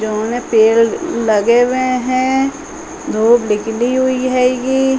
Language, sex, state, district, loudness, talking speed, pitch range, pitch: Hindi, female, Uttar Pradesh, Hamirpur, -14 LUFS, 110 wpm, 230-260 Hz, 250 Hz